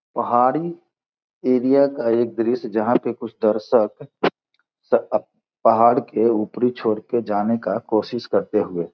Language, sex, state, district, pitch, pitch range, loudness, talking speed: Hindi, male, Bihar, Gopalganj, 115 Hz, 110-125 Hz, -20 LUFS, 130 wpm